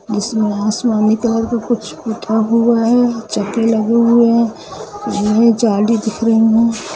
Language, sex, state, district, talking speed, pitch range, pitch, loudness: Hindi, female, Jharkhand, Jamtara, 145 wpm, 215-230 Hz, 225 Hz, -14 LUFS